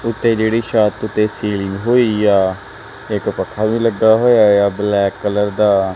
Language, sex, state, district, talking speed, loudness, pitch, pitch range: Punjabi, male, Punjab, Kapurthala, 150 wpm, -15 LUFS, 105 Hz, 100-110 Hz